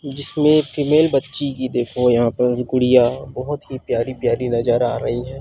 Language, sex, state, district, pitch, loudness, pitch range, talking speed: Chhattisgarhi, female, Chhattisgarh, Rajnandgaon, 130 Hz, -19 LUFS, 120-140 Hz, 145 wpm